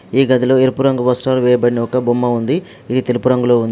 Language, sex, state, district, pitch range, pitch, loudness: Telugu, male, Telangana, Adilabad, 120-130 Hz, 125 Hz, -15 LUFS